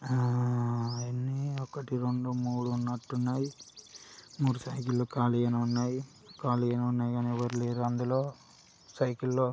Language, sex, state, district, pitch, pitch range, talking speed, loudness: Telugu, male, Telangana, Nalgonda, 125 Hz, 120-130 Hz, 115 wpm, -32 LUFS